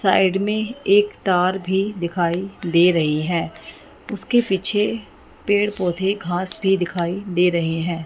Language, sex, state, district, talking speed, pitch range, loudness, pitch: Hindi, female, Punjab, Fazilka, 140 wpm, 175-205 Hz, -20 LUFS, 190 Hz